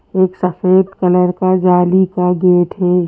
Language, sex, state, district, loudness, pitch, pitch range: Hindi, female, Madhya Pradesh, Bhopal, -13 LUFS, 180 Hz, 180-185 Hz